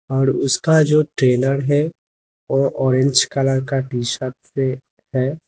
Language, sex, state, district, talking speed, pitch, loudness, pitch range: Hindi, male, Uttar Pradesh, Lalitpur, 140 wpm, 135 Hz, -18 LUFS, 130-140 Hz